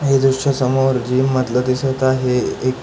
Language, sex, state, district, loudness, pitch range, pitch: Marathi, male, Maharashtra, Pune, -17 LUFS, 130-135 Hz, 130 Hz